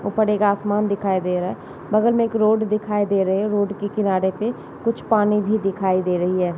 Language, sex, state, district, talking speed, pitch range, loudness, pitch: Hindi, female, Uttar Pradesh, Jalaun, 245 wpm, 190-215 Hz, -20 LUFS, 205 Hz